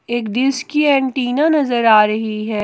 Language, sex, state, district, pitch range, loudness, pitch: Hindi, female, Jharkhand, Ranchi, 220-275 Hz, -16 LUFS, 245 Hz